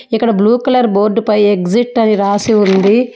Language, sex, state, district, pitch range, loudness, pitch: Telugu, female, Telangana, Hyderabad, 205-235 Hz, -12 LUFS, 220 Hz